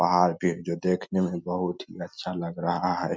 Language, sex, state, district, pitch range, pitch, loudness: Hindi, male, Bihar, Lakhisarai, 85-90 Hz, 90 Hz, -28 LUFS